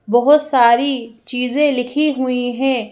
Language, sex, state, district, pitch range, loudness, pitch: Hindi, female, Madhya Pradesh, Bhopal, 240-280 Hz, -16 LUFS, 255 Hz